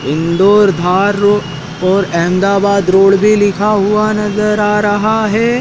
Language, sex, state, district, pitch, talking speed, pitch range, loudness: Hindi, male, Madhya Pradesh, Dhar, 200 Hz, 130 wpm, 185-210 Hz, -12 LUFS